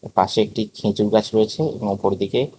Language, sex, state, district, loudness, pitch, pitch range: Bengali, male, Tripura, West Tripura, -21 LUFS, 110 Hz, 100-110 Hz